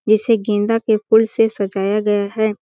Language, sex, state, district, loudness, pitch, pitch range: Hindi, female, Chhattisgarh, Balrampur, -17 LUFS, 215 Hz, 205-225 Hz